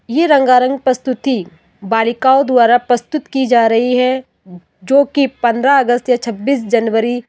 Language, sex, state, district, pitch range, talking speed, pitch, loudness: Hindi, female, Rajasthan, Jaipur, 235-270 Hz, 140 wpm, 250 Hz, -13 LUFS